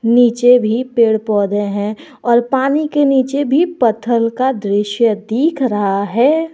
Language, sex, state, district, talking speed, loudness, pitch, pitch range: Hindi, male, Jharkhand, Garhwa, 145 wpm, -15 LUFS, 235 Hz, 215-265 Hz